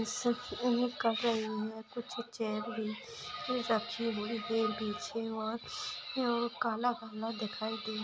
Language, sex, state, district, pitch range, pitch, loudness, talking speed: Hindi, female, Bihar, Lakhisarai, 215-240 Hz, 225 Hz, -35 LUFS, 110 wpm